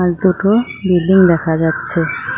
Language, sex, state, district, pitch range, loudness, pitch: Bengali, female, West Bengal, Cooch Behar, 170-190 Hz, -14 LUFS, 180 Hz